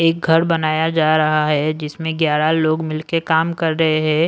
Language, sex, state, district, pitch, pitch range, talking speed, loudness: Hindi, male, Punjab, Pathankot, 160 Hz, 155-165 Hz, 195 wpm, -17 LUFS